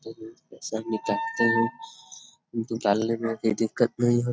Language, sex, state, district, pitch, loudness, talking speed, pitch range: Hindi, male, Bihar, Jamui, 115 Hz, -26 LUFS, 165 wpm, 115-125 Hz